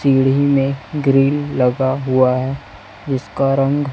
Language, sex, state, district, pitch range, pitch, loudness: Hindi, male, Chhattisgarh, Raipur, 130-140 Hz, 135 Hz, -17 LUFS